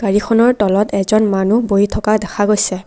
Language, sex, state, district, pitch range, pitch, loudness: Assamese, female, Assam, Kamrup Metropolitan, 200-215 Hz, 205 Hz, -14 LUFS